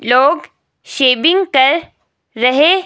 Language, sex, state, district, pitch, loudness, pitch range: Hindi, female, Himachal Pradesh, Shimla, 280 Hz, -13 LUFS, 255-335 Hz